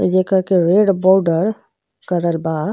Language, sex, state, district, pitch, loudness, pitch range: Bhojpuri, female, Uttar Pradesh, Gorakhpur, 185 Hz, -16 LUFS, 170-195 Hz